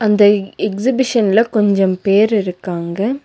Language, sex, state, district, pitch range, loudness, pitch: Tamil, female, Tamil Nadu, Nilgiris, 195-220 Hz, -15 LUFS, 205 Hz